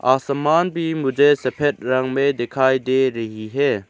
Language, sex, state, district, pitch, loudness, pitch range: Hindi, male, Arunachal Pradesh, Lower Dibang Valley, 130 Hz, -19 LUFS, 130-145 Hz